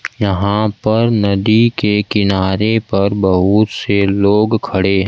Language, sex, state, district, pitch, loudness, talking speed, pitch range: Hindi, male, Bihar, Kaimur, 105 Hz, -14 LUFS, 120 wpm, 100-110 Hz